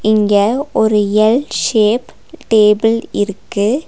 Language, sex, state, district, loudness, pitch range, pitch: Tamil, female, Tamil Nadu, Nilgiris, -14 LUFS, 210-240 Hz, 215 Hz